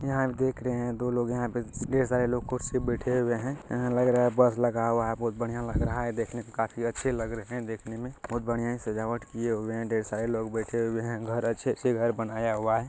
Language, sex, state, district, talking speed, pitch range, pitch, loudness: Hindi, male, Bihar, Purnia, 265 wpm, 115-125 Hz, 120 Hz, -29 LUFS